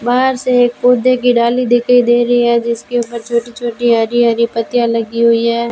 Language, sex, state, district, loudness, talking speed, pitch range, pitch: Hindi, female, Rajasthan, Bikaner, -13 LUFS, 200 wpm, 235-245 Hz, 240 Hz